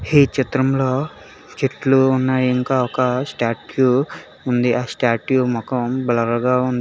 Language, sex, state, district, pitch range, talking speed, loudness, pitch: Telugu, male, Telangana, Hyderabad, 125-130 Hz, 125 wpm, -19 LUFS, 130 Hz